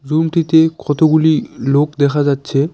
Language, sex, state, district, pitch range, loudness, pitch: Bengali, male, West Bengal, Cooch Behar, 140-160 Hz, -14 LUFS, 150 Hz